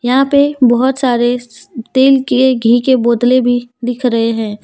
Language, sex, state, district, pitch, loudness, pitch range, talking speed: Hindi, female, Jharkhand, Deoghar, 245 Hz, -12 LUFS, 240-260 Hz, 170 wpm